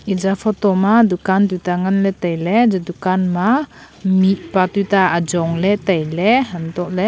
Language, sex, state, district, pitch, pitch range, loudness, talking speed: Wancho, female, Arunachal Pradesh, Longding, 190 Hz, 180-200 Hz, -16 LUFS, 145 wpm